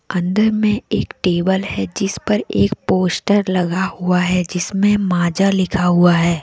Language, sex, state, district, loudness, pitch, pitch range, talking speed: Hindi, female, Jharkhand, Deoghar, -17 LUFS, 185 Hz, 175-195 Hz, 170 wpm